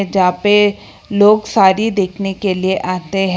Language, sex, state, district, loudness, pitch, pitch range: Hindi, female, Karnataka, Bangalore, -14 LUFS, 195 Hz, 190-205 Hz